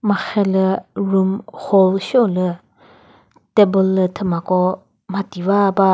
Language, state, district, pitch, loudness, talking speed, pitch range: Chakhesang, Nagaland, Dimapur, 195 Hz, -17 LUFS, 130 wpm, 185-200 Hz